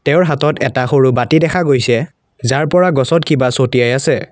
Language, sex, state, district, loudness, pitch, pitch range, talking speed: Assamese, male, Assam, Kamrup Metropolitan, -13 LUFS, 140 Hz, 125-165 Hz, 180 wpm